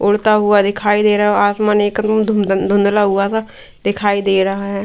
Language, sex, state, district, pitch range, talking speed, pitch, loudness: Hindi, female, Delhi, New Delhi, 200-210 Hz, 185 wpm, 205 Hz, -15 LUFS